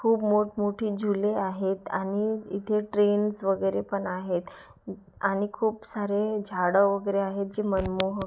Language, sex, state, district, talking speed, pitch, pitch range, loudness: Marathi, female, Maharashtra, Gondia, 130 wpm, 200 Hz, 195-210 Hz, -27 LUFS